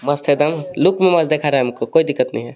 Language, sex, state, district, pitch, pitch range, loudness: Hindi, male, Jharkhand, Garhwa, 150 Hz, 145-160 Hz, -16 LUFS